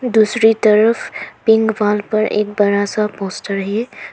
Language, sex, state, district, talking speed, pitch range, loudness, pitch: Hindi, female, Arunachal Pradesh, Papum Pare, 145 wpm, 205-220 Hz, -16 LUFS, 210 Hz